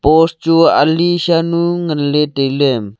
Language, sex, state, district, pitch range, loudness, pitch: Wancho, male, Arunachal Pradesh, Longding, 145-170 Hz, -13 LUFS, 160 Hz